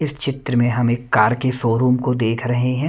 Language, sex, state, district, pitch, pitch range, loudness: Hindi, male, Punjab, Kapurthala, 125 Hz, 120-130 Hz, -19 LUFS